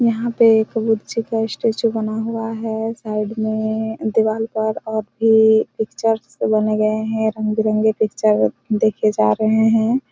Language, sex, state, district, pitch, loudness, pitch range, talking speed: Hindi, female, Chhattisgarh, Raigarh, 220 Hz, -18 LUFS, 215-225 Hz, 155 wpm